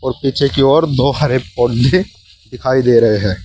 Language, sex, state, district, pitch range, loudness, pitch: Hindi, male, Uttar Pradesh, Saharanpur, 115-135 Hz, -14 LUFS, 130 Hz